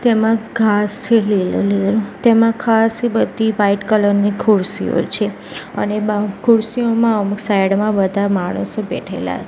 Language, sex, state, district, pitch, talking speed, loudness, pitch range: Gujarati, female, Gujarat, Gandhinagar, 210 Hz, 140 wpm, -16 LUFS, 200-225 Hz